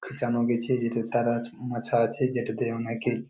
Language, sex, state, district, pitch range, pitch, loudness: Bengali, male, West Bengal, Jalpaiguri, 115-120 Hz, 120 Hz, -27 LUFS